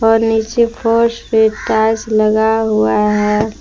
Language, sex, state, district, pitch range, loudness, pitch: Hindi, female, Jharkhand, Palamu, 215-225 Hz, -14 LUFS, 220 Hz